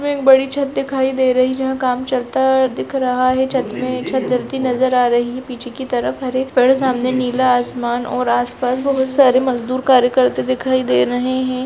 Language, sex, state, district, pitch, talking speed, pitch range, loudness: Hindi, female, Rajasthan, Nagaur, 255 Hz, 210 wpm, 245-265 Hz, -16 LUFS